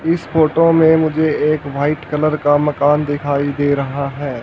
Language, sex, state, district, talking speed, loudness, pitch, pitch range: Hindi, male, Haryana, Rohtak, 175 wpm, -15 LUFS, 150 Hz, 145-155 Hz